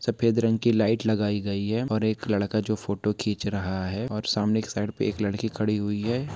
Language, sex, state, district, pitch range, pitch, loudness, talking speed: Hindi, male, Chhattisgarh, Jashpur, 105-115 Hz, 105 Hz, -26 LUFS, 235 wpm